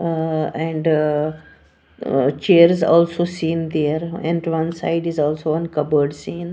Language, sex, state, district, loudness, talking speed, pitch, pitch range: English, female, Punjab, Pathankot, -19 LUFS, 140 wpm, 160 Hz, 150-170 Hz